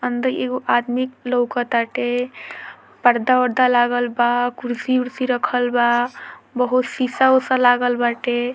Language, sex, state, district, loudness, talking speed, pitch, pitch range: Bhojpuri, female, Bihar, Muzaffarpur, -19 LUFS, 110 wpm, 245 Hz, 245-255 Hz